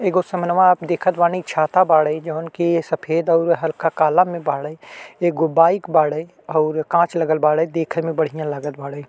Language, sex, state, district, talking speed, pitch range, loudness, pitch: Bhojpuri, male, Uttar Pradesh, Ghazipur, 180 wpm, 155-170 Hz, -19 LUFS, 165 Hz